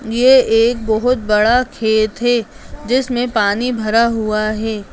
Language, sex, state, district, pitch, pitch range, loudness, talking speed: Hindi, female, Bihar, Lakhisarai, 225 Hz, 215-245 Hz, -15 LUFS, 135 wpm